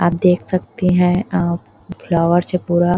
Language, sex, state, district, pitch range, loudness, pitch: Hindi, female, Chhattisgarh, Bilaspur, 175-180 Hz, -17 LUFS, 175 Hz